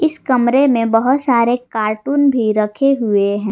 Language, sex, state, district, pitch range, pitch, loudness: Hindi, female, Jharkhand, Garhwa, 215-275 Hz, 240 Hz, -15 LUFS